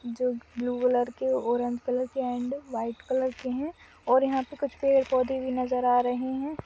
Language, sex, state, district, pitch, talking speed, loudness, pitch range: Hindi, female, Goa, North and South Goa, 255 Hz, 215 wpm, -28 LUFS, 245-265 Hz